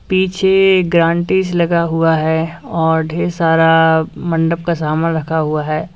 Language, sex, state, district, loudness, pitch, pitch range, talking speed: Hindi, male, Uttar Pradesh, Lalitpur, -14 LUFS, 165 Hz, 160-175 Hz, 140 wpm